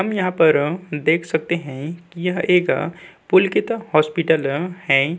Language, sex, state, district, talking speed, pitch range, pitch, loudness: Hindi, male, Uttar Pradesh, Budaun, 140 wpm, 155-180 Hz, 170 Hz, -19 LUFS